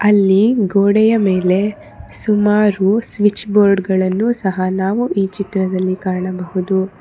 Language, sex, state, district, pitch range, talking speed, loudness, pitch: Kannada, female, Karnataka, Bangalore, 190-210 Hz, 105 wpm, -15 LUFS, 195 Hz